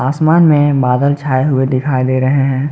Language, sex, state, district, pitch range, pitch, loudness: Hindi, male, Jharkhand, Garhwa, 130-145 Hz, 135 Hz, -12 LUFS